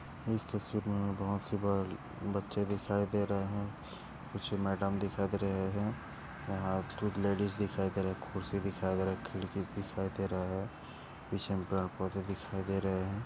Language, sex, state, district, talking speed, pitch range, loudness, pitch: Hindi, male, Maharashtra, Dhule, 175 wpm, 95-100 Hz, -36 LUFS, 100 Hz